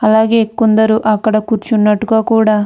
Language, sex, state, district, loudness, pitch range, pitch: Telugu, female, Andhra Pradesh, Anantapur, -12 LUFS, 215-220 Hz, 220 Hz